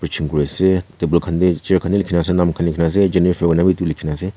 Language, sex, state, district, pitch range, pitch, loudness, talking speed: Nagamese, male, Nagaland, Kohima, 85-95 Hz, 85 Hz, -17 LUFS, 260 wpm